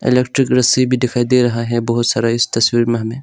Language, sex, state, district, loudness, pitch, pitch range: Hindi, male, Arunachal Pradesh, Longding, -15 LUFS, 120 Hz, 115-125 Hz